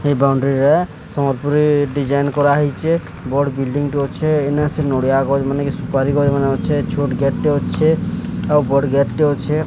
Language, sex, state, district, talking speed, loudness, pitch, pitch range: Odia, male, Odisha, Sambalpur, 135 wpm, -17 LUFS, 145 Hz, 140-150 Hz